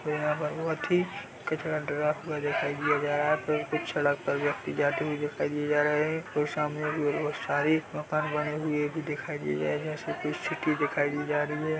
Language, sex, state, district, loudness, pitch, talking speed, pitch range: Hindi, male, Chhattisgarh, Bilaspur, -29 LUFS, 150 Hz, 230 wpm, 145-155 Hz